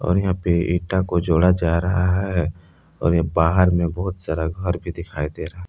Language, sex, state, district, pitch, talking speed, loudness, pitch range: Hindi, male, Jharkhand, Palamu, 85 Hz, 200 wpm, -21 LUFS, 85-90 Hz